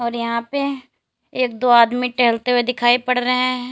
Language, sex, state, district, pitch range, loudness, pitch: Hindi, female, Uttar Pradesh, Lalitpur, 240-255 Hz, -18 LUFS, 250 Hz